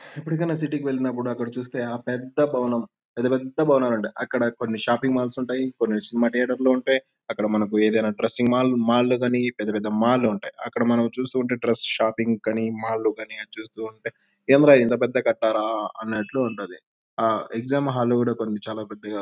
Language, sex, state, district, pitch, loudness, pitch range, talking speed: Telugu, male, Andhra Pradesh, Anantapur, 120 Hz, -23 LUFS, 110-130 Hz, 180 wpm